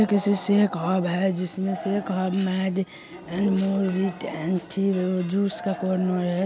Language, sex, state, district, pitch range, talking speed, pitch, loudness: Hindi, male, Bihar, Saharsa, 185-195 Hz, 120 wpm, 190 Hz, -24 LUFS